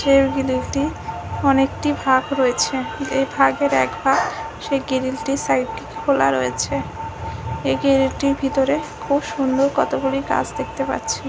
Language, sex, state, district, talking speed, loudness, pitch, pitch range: Bengali, female, West Bengal, Jhargram, 120 wpm, -20 LUFS, 275 Hz, 255-280 Hz